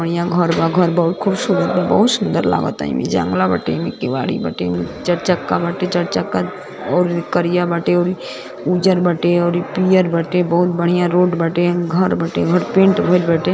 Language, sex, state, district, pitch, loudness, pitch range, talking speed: Hindi, female, Uttar Pradesh, Ghazipur, 175 Hz, -17 LUFS, 170-180 Hz, 185 wpm